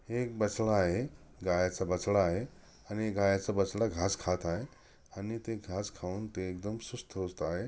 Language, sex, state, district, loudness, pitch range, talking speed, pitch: Marathi, male, Maharashtra, Chandrapur, -34 LUFS, 90-110 Hz, 155 wpm, 100 Hz